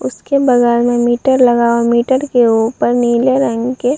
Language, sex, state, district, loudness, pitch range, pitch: Hindi, female, Uttar Pradesh, Muzaffarnagar, -13 LUFS, 235-260 Hz, 240 Hz